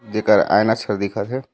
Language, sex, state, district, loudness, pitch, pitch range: Chhattisgarhi, male, Chhattisgarh, Raigarh, -18 LUFS, 110 Hz, 105-115 Hz